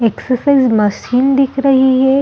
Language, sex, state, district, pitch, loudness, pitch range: Hindi, female, Chhattisgarh, Rajnandgaon, 265 Hz, -12 LUFS, 245-275 Hz